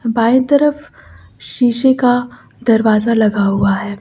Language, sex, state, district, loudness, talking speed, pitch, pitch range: Hindi, female, Uttar Pradesh, Lucknow, -14 LUFS, 120 wpm, 230 Hz, 200-250 Hz